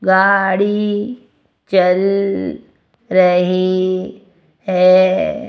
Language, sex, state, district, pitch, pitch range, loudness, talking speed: Hindi, female, Rajasthan, Jaipur, 190 Hz, 185-205 Hz, -14 LUFS, 45 wpm